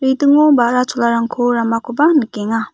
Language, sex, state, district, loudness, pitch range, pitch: Garo, female, Meghalaya, West Garo Hills, -14 LUFS, 230-275 Hz, 245 Hz